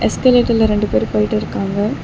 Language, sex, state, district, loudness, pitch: Tamil, female, Tamil Nadu, Chennai, -16 LUFS, 210 Hz